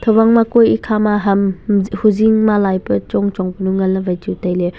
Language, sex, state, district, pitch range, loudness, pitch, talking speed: Wancho, male, Arunachal Pradesh, Longding, 190-215 Hz, -15 LUFS, 200 Hz, 225 wpm